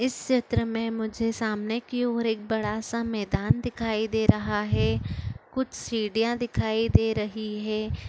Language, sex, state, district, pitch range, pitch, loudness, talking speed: Chhattisgarhi, female, Chhattisgarh, Korba, 210-230 Hz, 220 Hz, -27 LUFS, 155 wpm